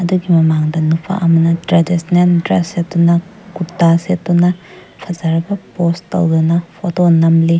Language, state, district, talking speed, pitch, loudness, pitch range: Manipuri, Manipur, Imphal West, 105 wpm, 170 Hz, -14 LUFS, 165-180 Hz